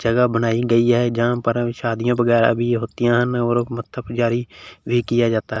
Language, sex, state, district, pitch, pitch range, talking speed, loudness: Hindi, male, Punjab, Fazilka, 120 Hz, 115-120 Hz, 195 wpm, -19 LUFS